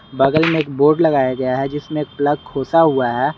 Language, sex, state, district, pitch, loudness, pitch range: Hindi, male, Jharkhand, Garhwa, 145 Hz, -17 LUFS, 135-155 Hz